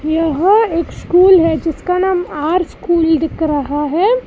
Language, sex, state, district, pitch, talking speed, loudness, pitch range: Hindi, female, Karnataka, Bangalore, 335 Hz, 155 wpm, -14 LUFS, 315-365 Hz